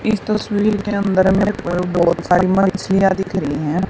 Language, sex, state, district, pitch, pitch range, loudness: Hindi, female, Haryana, Charkhi Dadri, 190 Hz, 180-205 Hz, -17 LUFS